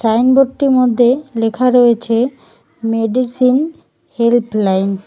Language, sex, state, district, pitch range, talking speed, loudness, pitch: Bengali, female, West Bengal, Cooch Behar, 225-255 Hz, 95 wpm, -14 LUFS, 240 Hz